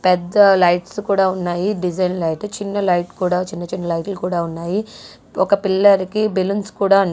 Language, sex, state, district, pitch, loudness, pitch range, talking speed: Telugu, female, Andhra Pradesh, Guntur, 185 Hz, -18 LUFS, 175-200 Hz, 160 wpm